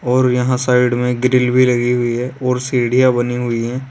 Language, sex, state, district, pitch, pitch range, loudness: Hindi, male, Uttar Pradesh, Saharanpur, 125 Hz, 120-125 Hz, -15 LUFS